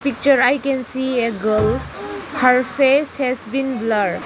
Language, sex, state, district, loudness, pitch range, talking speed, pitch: English, female, Arunachal Pradesh, Lower Dibang Valley, -18 LUFS, 235-275 Hz, 155 wpm, 260 Hz